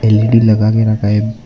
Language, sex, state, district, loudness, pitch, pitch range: Hindi, male, Arunachal Pradesh, Lower Dibang Valley, -12 LUFS, 110 Hz, 105-110 Hz